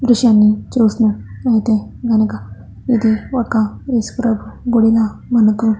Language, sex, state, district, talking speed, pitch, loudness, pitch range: Telugu, female, Andhra Pradesh, Chittoor, 95 wpm, 225 Hz, -15 LUFS, 215-235 Hz